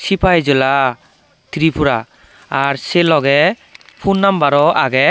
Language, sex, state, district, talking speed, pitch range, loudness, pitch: Chakma, male, Tripura, Dhalai, 105 wpm, 135-175 Hz, -14 LUFS, 145 Hz